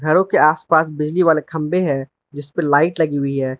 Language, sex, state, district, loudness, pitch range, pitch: Hindi, male, Arunachal Pradesh, Lower Dibang Valley, -17 LUFS, 140-160 Hz, 155 Hz